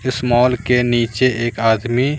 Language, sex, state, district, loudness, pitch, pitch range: Hindi, male, Bihar, Katihar, -16 LUFS, 125 Hz, 120-125 Hz